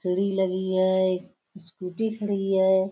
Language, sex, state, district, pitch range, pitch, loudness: Hindi, female, Uttar Pradesh, Budaun, 185-195 Hz, 190 Hz, -25 LUFS